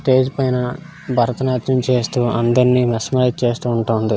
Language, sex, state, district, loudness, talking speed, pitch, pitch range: Telugu, male, Telangana, Karimnagar, -18 LUFS, 115 wpm, 125 Hz, 120-130 Hz